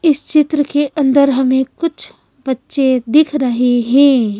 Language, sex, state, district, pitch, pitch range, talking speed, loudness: Hindi, female, Madhya Pradesh, Bhopal, 275 Hz, 260-295 Hz, 135 wpm, -14 LUFS